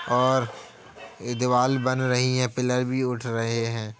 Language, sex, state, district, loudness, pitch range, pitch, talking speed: Hindi, female, Uttar Pradesh, Jalaun, -24 LUFS, 120-130 Hz, 125 Hz, 165 wpm